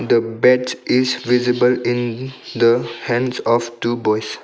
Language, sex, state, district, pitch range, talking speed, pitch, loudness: English, male, Arunachal Pradesh, Longding, 120-125 Hz, 135 wpm, 120 Hz, -18 LUFS